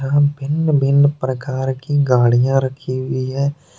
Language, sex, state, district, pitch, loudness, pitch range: Hindi, male, Jharkhand, Deoghar, 135 Hz, -17 LUFS, 130-145 Hz